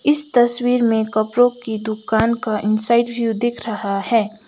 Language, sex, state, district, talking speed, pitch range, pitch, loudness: Hindi, female, Sikkim, Gangtok, 160 wpm, 220-240 Hz, 230 Hz, -18 LUFS